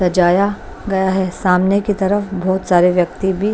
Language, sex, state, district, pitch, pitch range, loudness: Hindi, female, Bihar, West Champaran, 190 Hz, 180-200 Hz, -16 LUFS